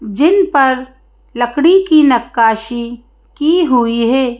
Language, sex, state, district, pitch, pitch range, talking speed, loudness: Hindi, female, Madhya Pradesh, Bhopal, 255 Hz, 235-300 Hz, 110 wpm, -12 LUFS